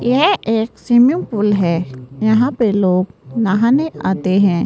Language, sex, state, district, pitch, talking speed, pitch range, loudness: Hindi, female, Rajasthan, Jaipur, 210 Hz, 140 wpm, 185-235 Hz, -15 LUFS